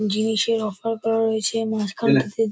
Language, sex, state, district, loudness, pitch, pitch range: Bengali, male, West Bengal, Dakshin Dinajpur, -22 LUFS, 220 Hz, 215-225 Hz